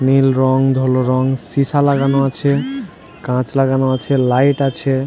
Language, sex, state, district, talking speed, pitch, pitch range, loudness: Bengali, male, West Bengal, Jhargram, 140 wpm, 135 Hz, 130-140 Hz, -15 LUFS